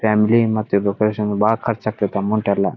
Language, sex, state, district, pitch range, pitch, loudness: Kannada, male, Karnataka, Dharwad, 100-110 Hz, 105 Hz, -18 LUFS